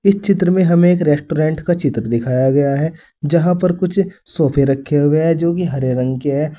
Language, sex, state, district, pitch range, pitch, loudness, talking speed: Hindi, male, Uttar Pradesh, Saharanpur, 140-175 Hz, 155 Hz, -16 LUFS, 220 wpm